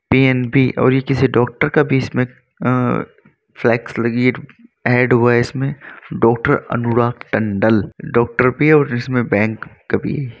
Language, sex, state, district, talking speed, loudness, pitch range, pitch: Hindi, male, Uttar Pradesh, Varanasi, 145 wpm, -16 LUFS, 120-135 Hz, 125 Hz